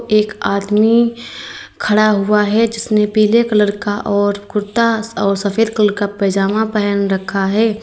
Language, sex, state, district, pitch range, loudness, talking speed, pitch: Hindi, female, Uttar Pradesh, Lalitpur, 205-220 Hz, -15 LUFS, 145 wpm, 210 Hz